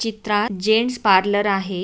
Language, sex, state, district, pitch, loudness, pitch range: Marathi, female, Maharashtra, Aurangabad, 205 Hz, -19 LUFS, 195-220 Hz